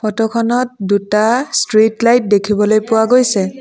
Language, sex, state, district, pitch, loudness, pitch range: Assamese, female, Assam, Sonitpur, 220 Hz, -13 LUFS, 210-235 Hz